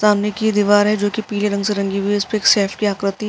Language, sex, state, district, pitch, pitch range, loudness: Hindi, female, Uttar Pradesh, Jyotiba Phule Nagar, 205 Hz, 200-210 Hz, -17 LUFS